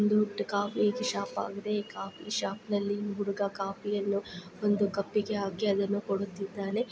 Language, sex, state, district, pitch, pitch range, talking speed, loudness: Kannada, female, Karnataka, Chamarajanagar, 200 Hz, 195-205 Hz, 130 wpm, -32 LUFS